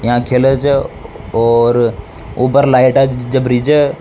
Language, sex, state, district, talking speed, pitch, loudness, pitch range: Rajasthani, male, Rajasthan, Nagaur, 120 wpm, 125 Hz, -13 LUFS, 120-135 Hz